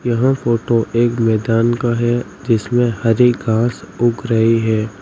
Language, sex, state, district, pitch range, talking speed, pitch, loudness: Hindi, male, Uttar Pradesh, Lalitpur, 115-120 Hz, 145 wpm, 115 Hz, -16 LUFS